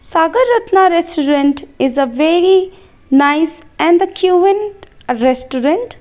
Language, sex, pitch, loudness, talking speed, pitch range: English, female, 335 Hz, -13 LUFS, 100 wpm, 285-380 Hz